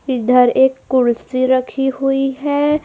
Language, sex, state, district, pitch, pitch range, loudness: Hindi, female, Madhya Pradesh, Dhar, 265 Hz, 255-270 Hz, -15 LUFS